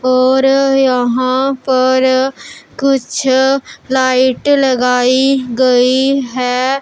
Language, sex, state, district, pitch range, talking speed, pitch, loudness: Hindi, female, Punjab, Pathankot, 255-270 Hz, 80 wpm, 260 Hz, -12 LUFS